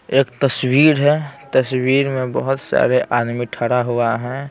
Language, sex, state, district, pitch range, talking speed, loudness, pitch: Hindi, male, Bihar, Patna, 125-140 Hz, 160 wpm, -17 LUFS, 130 Hz